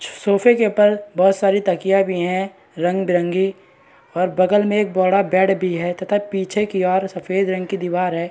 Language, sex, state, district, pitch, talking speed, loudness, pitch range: Hindi, female, Bihar, East Champaran, 190 Hz, 190 wpm, -18 LUFS, 180-195 Hz